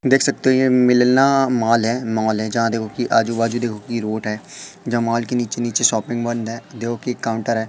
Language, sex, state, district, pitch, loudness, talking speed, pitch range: Hindi, male, Madhya Pradesh, Katni, 115 Hz, -19 LUFS, 240 wpm, 115-125 Hz